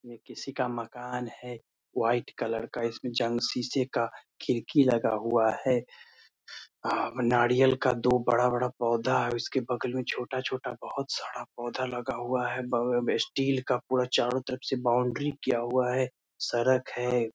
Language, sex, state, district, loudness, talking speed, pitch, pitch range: Hindi, male, Bihar, Muzaffarpur, -29 LUFS, 165 wpm, 125 Hz, 120-130 Hz